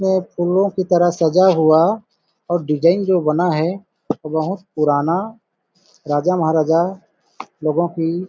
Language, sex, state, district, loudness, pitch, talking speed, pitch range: Hindi, male, Chhattisgarh, Balrampur, -17 LUFS, 175 Hz, 125 wpm, 160-190 Hz